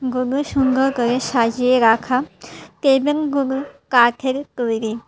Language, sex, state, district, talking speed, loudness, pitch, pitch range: Bengali, female, Tripura, West Tripura, 95 wpm, -18 LUFS, 255 Hz, 240-270 Hz